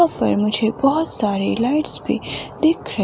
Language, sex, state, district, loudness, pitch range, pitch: Hindi, female, Himachal Pradesh, Shimla, -18 LUFS, 215-315 Hz, 275 Hz